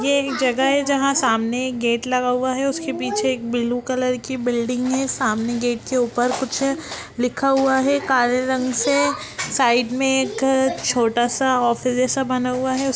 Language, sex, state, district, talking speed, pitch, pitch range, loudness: Hindi, female, Bihar, Lakhisarai, 180 wpm, 255 Hz, 245-265 Hz, -20 LUFS